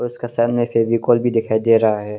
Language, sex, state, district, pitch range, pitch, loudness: Hindi, male, Arunachal Pradesh, Longding, 110-120 Hz, 115 Hz, -17 LUFS